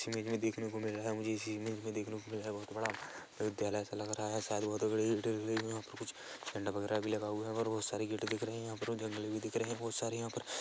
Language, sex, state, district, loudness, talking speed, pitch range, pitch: Hindi, male, Chhattisgarh, Kabirdham, -39 LUFS, 290 wpm, 105-110 Hz, 110 Hz